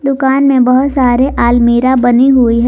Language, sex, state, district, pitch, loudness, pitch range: Hindi, female, Jharkhand, Garhwa, 255 Hz, -10 LUFS, 245-270 Hz